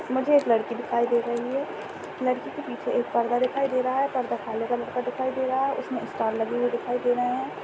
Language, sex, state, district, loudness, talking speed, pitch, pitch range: Hindi, female, Chhattisgarh, Jashpur, -26 LUFS, 250 wpm, 250 Hz, 240-260 Hz